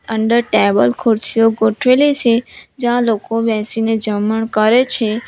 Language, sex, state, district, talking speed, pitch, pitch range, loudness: Gujarati, female, Gujarat, Valsad, 125 wpm, 225 Hz, 215-240 Hz, -15 LUFS